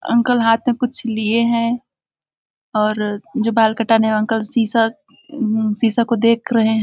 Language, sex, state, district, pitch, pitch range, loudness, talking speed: Hindi, female, Chhattisgarh, Balrampur, 230 Hz, 220-235 Hz, -17 LUFS, 150 wpm